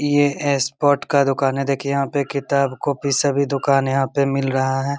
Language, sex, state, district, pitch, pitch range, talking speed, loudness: Maithili, male, Bihar, Begusarai, 140 Hz, 135-140 Hz, 205 wpm, -19 LUFS